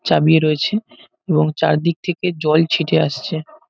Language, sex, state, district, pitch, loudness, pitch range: Bengali, male, West Bengal, North 24 Parganas, 165 Hz, -17 LUFS, 155-200 Hz